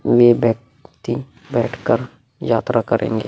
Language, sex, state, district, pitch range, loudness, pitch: Hindi, male, Bihar, Vaishali, 115-130 Hz, -19 LUFS, 120 Hz